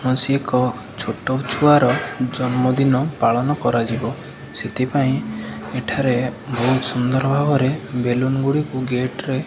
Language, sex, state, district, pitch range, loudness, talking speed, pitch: Odia, male, Odisha, Khordha, 125-135 Hz, -20 LUFS, 110 wpm, 130 Hz